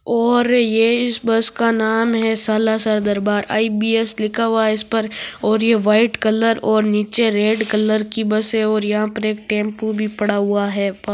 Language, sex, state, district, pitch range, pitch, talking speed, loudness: Marwari, female, Rajasthan, Nagaur, 215-225 Hz, 220 Hz, 190 wpm, -17 LUFS